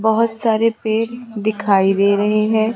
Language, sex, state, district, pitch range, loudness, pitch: Hindi, female, Rajasthan, Jaipur, 210-225 Hz, -17 LUFS, 220 Hz